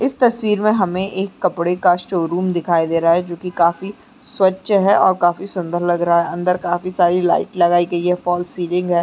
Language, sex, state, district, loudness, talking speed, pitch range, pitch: Hindi, female, Chhattisgarh, Sarguja, -17 LUFS, 220 wpm, 175-190 Hz, 180 Hz